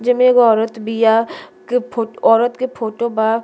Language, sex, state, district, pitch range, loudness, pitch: Bhojpuri, female, Uttar Pradesh, Deoria, 225-245 Hz, -16 LUFS, 230 Hz